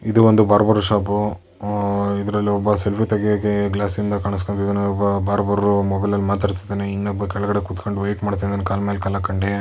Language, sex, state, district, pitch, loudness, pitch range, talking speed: Kannada, male, Karnataka, Dakshina Kannada, 100 Hz, -20 LUFS, 100-105 Hz, 155 wpm